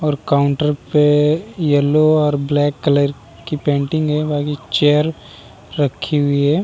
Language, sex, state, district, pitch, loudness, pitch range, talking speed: Hindi, male, Bihar, Vaishali, 145 Hz, -17 LUFS, 145-150 Hz, 145 wpm